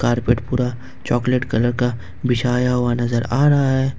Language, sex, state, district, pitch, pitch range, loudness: Hindi, male, Jharkhand, Ranchi, 125 Hz, 120-130 Hz, -19 LUFS